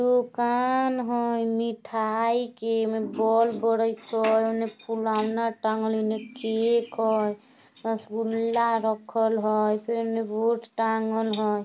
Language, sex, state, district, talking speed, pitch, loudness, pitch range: Bajjika, female, Bihar, Vaishali, 115 wpm, 225 Hz, -26 LUFS, 220-230 Hz